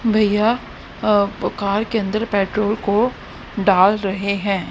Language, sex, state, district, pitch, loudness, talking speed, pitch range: Hindi, female, Haryana, Rohtak, 205 Hz, -19 LUFS, 125 wpm, 200-215 Hz